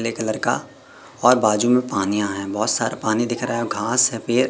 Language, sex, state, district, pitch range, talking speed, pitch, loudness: Hindi, male, Madhya Pradesh, Katni, 110-125 Hz, 240 wpm, 115 Hz, -20 LUFS